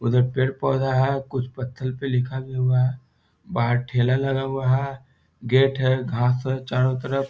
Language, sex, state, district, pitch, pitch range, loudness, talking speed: Hindi, male, Bihar, Muzaffarpur, 130 Hz, 125-135 Hz, -23 LUFS, 170 wpm